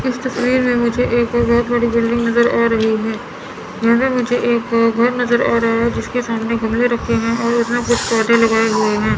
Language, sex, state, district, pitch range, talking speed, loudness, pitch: Hindi, female, Chandigarh, Chandigarh, 230-240 Hz, 155 wpm, -16 LUFS, 235 Hz